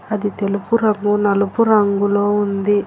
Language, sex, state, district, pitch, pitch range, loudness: Telugu, female, Telangana, Hyderabad, 205 Hz, 200-210 Hz, -17 LUFS